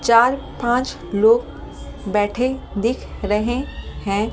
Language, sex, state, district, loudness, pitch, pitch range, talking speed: Hindi, female, Delhi, New Delhi, -20 LUFS, 230 Hz, 205-250 Hz, 95 wpm